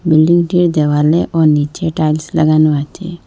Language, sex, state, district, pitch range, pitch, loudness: Bengali, female, Assam, Hailakandi, 155-170 Hz, 155 Hz, -13 LUFS